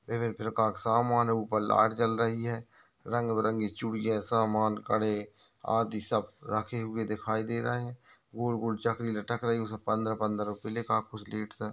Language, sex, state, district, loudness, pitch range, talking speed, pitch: Hindi, male, Maharashtra, Aurangabad, -31 LUFS, 110-115 Hz, 180 wpm, 110 Hz